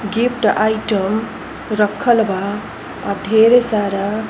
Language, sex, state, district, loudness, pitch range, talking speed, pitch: Bhojpuri, female, Uttar Pradesh, Ghazipur, -17 LUFS, 200-225 Hz, 110 wpm, 215 Hz